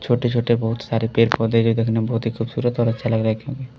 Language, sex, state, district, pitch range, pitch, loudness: Hindi, male, Bihar, West Champaran, 115-120 Hz, 115 Hz, -20 LUFS